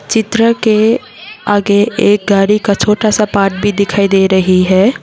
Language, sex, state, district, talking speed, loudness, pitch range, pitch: Hindi, female, Sikkim, Gangtok, 165 wpm, -11 LUFS, 195-215 Hz, 205 Hz